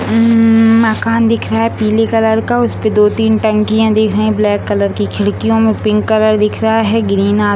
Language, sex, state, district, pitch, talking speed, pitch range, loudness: Hindi, female, Bihar, Gopalganj, 220 Hz, 215 wpm, 210-225 Hz, -12 LUFS